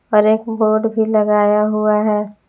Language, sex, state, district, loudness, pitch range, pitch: Hindi, female, Jharkhand, Palamu, -15 LUFS, 210-220 Hz, 215 Hz